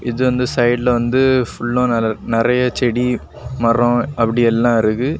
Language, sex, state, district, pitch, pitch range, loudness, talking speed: Tamil, male, Tamil Nadu, Kanyakumari, 120 Hz, 115-125 Hz, -16 LUFS, 125 wpm